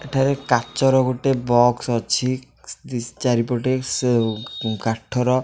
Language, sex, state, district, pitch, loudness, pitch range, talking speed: Odia, male, Odisha, Khordha, 125 Hz, -21 LUFS, 120-130 Hz, 110 wpm